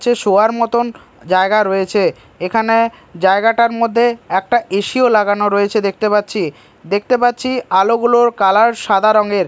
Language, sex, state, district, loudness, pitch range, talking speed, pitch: Bengali, male, Odisha, Malkangiri, -14 LUFS, 195-235 Hz, 135 wpm, 215 Hz